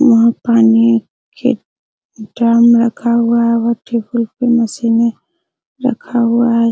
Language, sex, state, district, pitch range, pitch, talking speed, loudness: Hindi, female, Bihar, Araria, 230-235 Hz, 235 Hz, 125 wpm, -13 LUFS